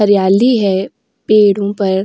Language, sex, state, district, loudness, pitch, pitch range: Hindi, female, Uttar Pradesh, Jyotiba Phule Nagar, -12 LUFS, 200 Hz, 195-210 Hz